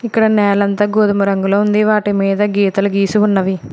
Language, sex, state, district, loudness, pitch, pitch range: Telugu, female, Telangana, Hyderabad, -14 LUFS, 200 Hz, 195-210 Hz